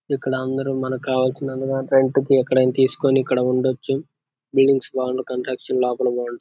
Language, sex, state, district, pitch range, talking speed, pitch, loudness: Telugu, male, Andhra Pradesh, Guntur, 130-135 Hz, 150 wpm, 130 Hz, -20 LUFS